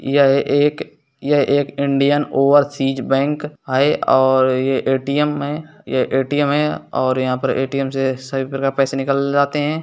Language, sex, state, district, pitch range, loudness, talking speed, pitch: Hindi, male, Bihar, East Champaran, 135-145 Hz, -17 LUFS, 175 wpm, 140 Hz